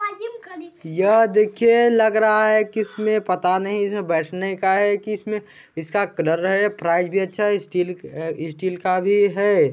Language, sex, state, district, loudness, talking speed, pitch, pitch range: Chhattisgarhi, male, Chhattisgarh, Balrampur, -20 LUFS, 165 wpm, 205 Hz, 185-215 Hz